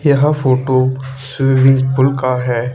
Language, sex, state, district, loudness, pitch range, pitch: Hindi, male, Haryana, Charkhi Dadri, -14 LUFS, 130-135 Hz, 130 Hz